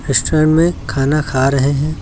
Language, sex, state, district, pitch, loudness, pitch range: Hindi, male, Uttar Pradesh, Lucknow, 140 Hz, -15 LUFS, 135-155 Hz